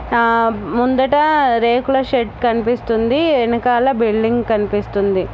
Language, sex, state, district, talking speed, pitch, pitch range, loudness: Telugu, female, Andhra Pradesh, Anantapur, 90 wpm, 235 Hz, 225-255 Hz, -16 LUFS